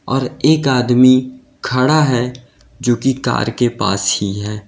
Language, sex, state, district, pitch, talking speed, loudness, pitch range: Hindi, male, Uttar Pradesh, Lalitpur, 125 Hz, 155 wpm, -15 LUFS, 110-130 Hz